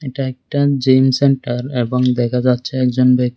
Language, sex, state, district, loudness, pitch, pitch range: Bengali, male, Tripura, West Tripura, -16 LUFS, 130 Hz, 125-135 Hz